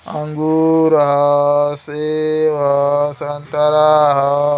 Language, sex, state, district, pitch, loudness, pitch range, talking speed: Hindi, male, Uttar Pradesh, Gorakhpur, 145 Hz, -15 LUFS, 145-155 Hz, 80 wpm